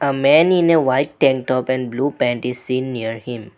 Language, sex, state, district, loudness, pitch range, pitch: English, male, Assam, Sonitpur, -18 LUFS, 125-140 Hz, 130 Hz